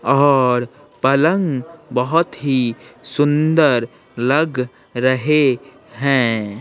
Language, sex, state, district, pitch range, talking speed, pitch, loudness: Hindi, male, Bihar, Patna, 125-150 Hz, 75 wpm, 135 Hz, -17 LUFS